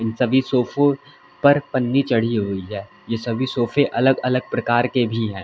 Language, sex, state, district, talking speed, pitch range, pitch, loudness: Hindi, male, Uttar Pradesh, Lalitpur, 175 wpm, 115-135 Hz, 125 Hz, -20 LUFS